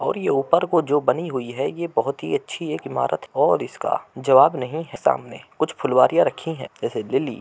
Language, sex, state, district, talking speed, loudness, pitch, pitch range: Hindi, male, Uttar Pradesh, Muzaffarnagar, 220 wpm, -21 LUFS, 135 Hz, 120-165 Hz